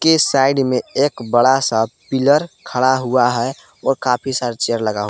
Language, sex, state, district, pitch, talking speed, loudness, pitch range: Hindi, male, Jharkhand, Palamu, 130 Hz, 190 wpm, -17 LUFS, 120-135 Hz